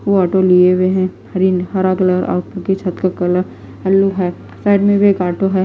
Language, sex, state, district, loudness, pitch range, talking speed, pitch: Hindi, female, Himachal Pradesh, Shimla, -15 LUFS, 180-195 Hz, 225 wpm, 185 Hz